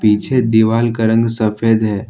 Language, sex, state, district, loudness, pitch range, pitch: Hindi, male, Jharkhand, Ranchi, -14 LUFS, 110-115 Hz, 110 Hz